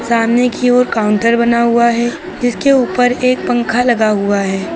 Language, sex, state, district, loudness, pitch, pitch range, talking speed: Hindi, female, Uttar Pradesh, Lucknow, -13 LUFS, 235 Hz, 230-245 Hz, 175 wpm